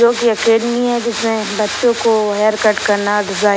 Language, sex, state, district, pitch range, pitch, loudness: Hindi, male, Bihar, Purnia, 210-235 Hz, 220 Hz, -15 LUFS